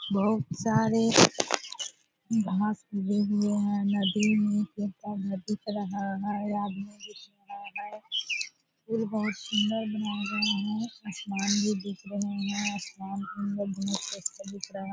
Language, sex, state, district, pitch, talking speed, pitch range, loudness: Hindi, female, Bihar, Purnia, 205 Hz, 135 wpm, 200-215 Hz, -29 LUFS